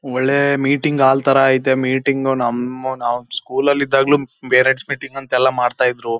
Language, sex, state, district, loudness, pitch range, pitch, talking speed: Kannada, male, Karnataka, Chamarajanagar, -17 LUFS, 125-135 Hz, 130 Hz, 155 wpm